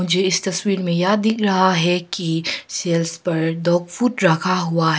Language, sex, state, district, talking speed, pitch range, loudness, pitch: Hindi, female, Arunachal Pradesh, Papum Pare, 190 wpm, 170-190 Hz, -19 LUFS, 180 Hz